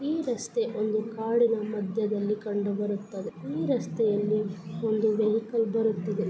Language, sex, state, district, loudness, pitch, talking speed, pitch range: Kannada, female, Karnataka, Chamarajanagar, -28 LUFS, 215 Hz, 105 wpm, 205-225 Hz